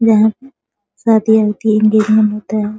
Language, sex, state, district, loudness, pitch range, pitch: Hindi, female, Bihar, Sitamarhi, -13 LUFS, 215-220 Hz, 215 Hz